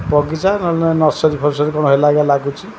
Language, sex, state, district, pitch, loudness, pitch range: Odia, male, Odisha, Khordha, 150 Hz, -15 LUFS, 145-165 Hz